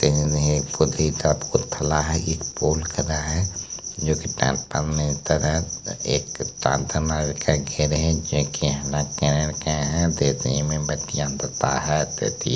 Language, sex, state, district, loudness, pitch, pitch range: Maithili, male, Bihar, Supaul, -23 LUFS, 75 Hz, 75-80 Hz